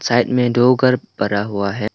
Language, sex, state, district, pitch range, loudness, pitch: Hindi, male, Arunachal Pradesh, Lower Dibang Valley, 100-125 Hz, -17 LUFS, 120 Hz